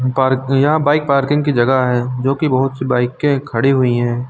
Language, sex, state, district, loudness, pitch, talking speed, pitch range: Hindi, male, Uttar Pradesh, Lucknow, -15 LUFS, 130 Hz, 220 wpm, 125-140 Hz